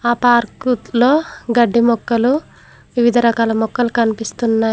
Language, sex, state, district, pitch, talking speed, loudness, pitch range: Telugu, female, Telangana, Mahabubabad, 235 Hz, 115 wpm, -16 LUFS, 230-245 Hz